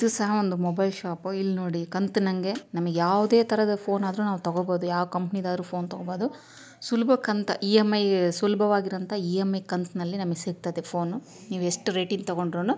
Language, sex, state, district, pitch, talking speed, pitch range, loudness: Kannada, female, Karnataka, Chamarajanagar, 190 Hz, 170 wpm, 180-205 Hz, -26 LUFS